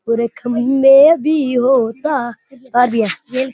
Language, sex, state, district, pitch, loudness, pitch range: Rajasthani, male, Rajasthan, Churu, 255 Hz, -14 LUFS, 240-270 Hz